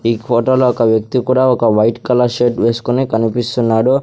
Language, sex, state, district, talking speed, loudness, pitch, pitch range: Telugu, male, Andhra Pradesh, Sri Satya Sai, 165 wpm, -14 LUFS, 120 Hz, 115-125 Hz